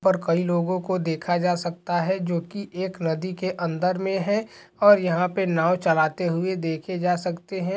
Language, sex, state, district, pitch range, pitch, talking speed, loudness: Hindi, male, Chhattisgarh, Balrampur, 170-190 Hz, 180 Hz, 210 wpm, -24 LUFS